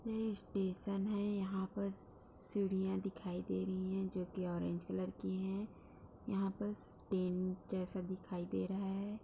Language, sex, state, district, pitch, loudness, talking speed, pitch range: Hindi, female, Bihar, Darbhanga, 190 Hz, -41 LUFS, 155 wpm, 185-200 Hz